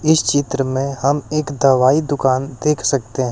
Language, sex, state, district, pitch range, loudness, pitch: Hindi, male, Bihar, West Champaran, 130-145 Hz, -17 LUFS, 140 Hz